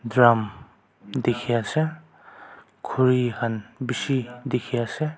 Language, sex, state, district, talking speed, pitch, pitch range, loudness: Nagamese, male, Nagaland, Kohima, 95 wpm, 125 Hz, 115-130 Hz, -24 LUFS